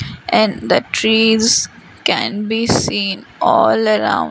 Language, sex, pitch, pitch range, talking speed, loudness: English, female, 220 Hz, 210-225 Hz, 110 wpm, -15 LUFS